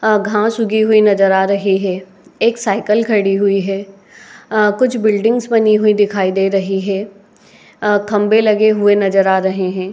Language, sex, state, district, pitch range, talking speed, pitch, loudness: Hindi, female, Uttar Pradesh, Etah, 195-215 Hz, 180 wpm, 205 Hz, -14 LUFS